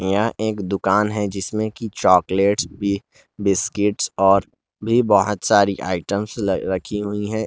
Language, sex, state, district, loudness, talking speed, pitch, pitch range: Hindi, male, Jharkhand, Garhwa, -20 LUFS, 135 wpm, 100 Hz, 95-105 Hz